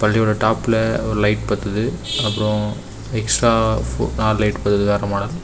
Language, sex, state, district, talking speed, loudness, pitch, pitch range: Tamil, male, Tamil Nadu, Kanyakumari, 120 wpm, -19 LUFS, 105 Hz, 105-110 Hz